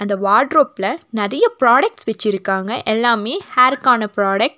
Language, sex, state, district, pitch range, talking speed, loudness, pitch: Tamil, female, Tamil Nadu, Nilgiris, 205-290 Hz, 120 wpm, -16 LUFS, 230 Hz